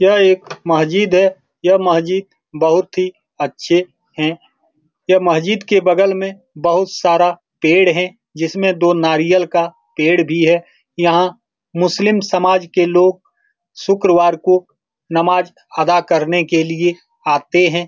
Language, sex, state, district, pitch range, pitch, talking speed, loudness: Hindi, male, Bihar, Saran, 165-185 Hz, 175 Hz, 140 wpm, -15 LUFS